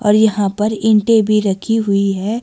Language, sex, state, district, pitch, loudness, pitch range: Hindi, female, Himachal Pradesh, Shimla, 210 Hz, -15 LUFS, 200-220 Hz